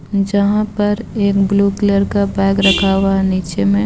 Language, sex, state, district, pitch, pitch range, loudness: Hindi, female, Jharkhand, Ranchi, 200 Hz, 195-200 Hz, -15 LUFS